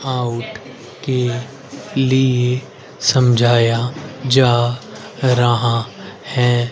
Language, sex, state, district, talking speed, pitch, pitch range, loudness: Hindi, male, Haryana, Rohtak, 60 wpm, 125 Hz, 120-130 Hz, -17 LUFS